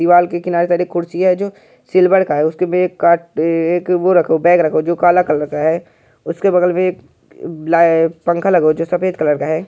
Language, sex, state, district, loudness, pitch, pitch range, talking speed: Hindi, male, Uttar Pradesh, Jyotiba Phule Nagar, -15 LUFS, 170 Hz, 160-180 Hz, 240 wpm